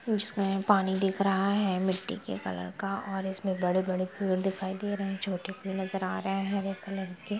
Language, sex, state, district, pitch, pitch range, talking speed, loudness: Hindi, female, Bihar, Sitamarhi, 195 Hz, 190-195 Hz, 210 wpm, -30 LUFS